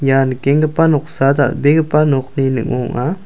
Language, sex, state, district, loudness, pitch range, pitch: Garo, male, Meghalaya, South Garo Hills, -15 LUFS, 135-155 Hz, 140 Hz